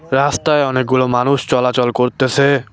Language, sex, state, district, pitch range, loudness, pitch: Bengali, male, West Bengal, Cooch Behar, 125-140 Hz, -15 LUFS, 130 Hz